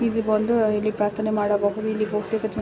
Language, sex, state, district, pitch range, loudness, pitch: Kannada, female, Karnataka, Dharwad, 210-220 Hz, -23 LUFS, 215 Hz